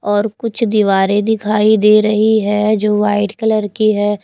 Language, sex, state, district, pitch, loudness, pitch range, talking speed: Hindi, female, Haryana, Jhajjar, 210 Hz, -14 LUFS, 205-215 Hz, 170 wpm